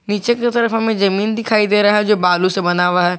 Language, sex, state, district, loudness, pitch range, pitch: Hindi, male, Jharkhand, Garhwa, -15 LUFS, 180-225 Hz, 210 Hz